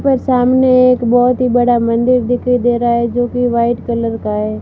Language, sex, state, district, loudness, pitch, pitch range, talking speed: Hindi, female, Rajasthan, Barmer, -13 LUFS, 245 Hz, 235-250 Hz, 220 wpm